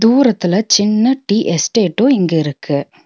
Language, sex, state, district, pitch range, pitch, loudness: Tamil, female, Tamil Nadu, Nilgiris, 165-230 Hz, 210 Hz, -14 LUFS